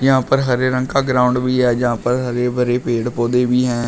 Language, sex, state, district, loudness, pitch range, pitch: Hindi, male, Uttar Pradesh, Shamli, -17 LUFS, 120-130 Hz, 125 Hz